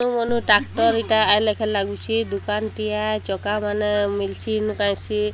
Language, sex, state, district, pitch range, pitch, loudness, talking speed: Odia, female, Odisha, Sambalpur, 205-220 Hz, 210 Hz, -21 LUFS, 155 wpm